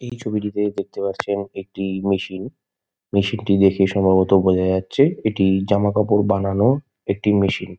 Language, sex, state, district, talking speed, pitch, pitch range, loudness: Bengali, male, West Bengal, Kolkata, 140 wpm, 100 Hz, 95-105 Hz, -19 LUFS